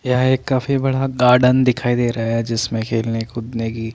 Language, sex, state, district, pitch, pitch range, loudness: Hindi, male, Chandigarh, Chandigarh, 120 Hz, 115-130 Hz, -18 LUFS